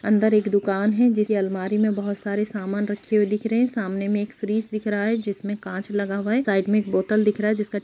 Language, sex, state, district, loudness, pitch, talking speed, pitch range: Hindi, female, Jharkhand, Sahebganj, -23 LUFS, 210 Hz, 275 wpm, 205-215 Hz